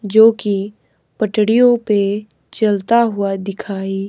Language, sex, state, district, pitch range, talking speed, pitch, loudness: Hindi, male, Himachal Pradesh, Shimla, 195-220 Hz, 100 wpm, 210 Hz, -16 LUFS